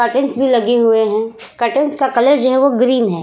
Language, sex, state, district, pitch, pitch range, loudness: Hindi, female, Uttar Pradesh, Budaun, 250 Hz, 230-270 Hz, -14 LUFS